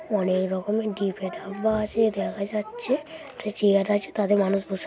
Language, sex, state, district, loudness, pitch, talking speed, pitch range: Bengali, male, West Bengal, Jhargram, -25 LUFS, 205 Hz, 125 wpm, 195-220 Hz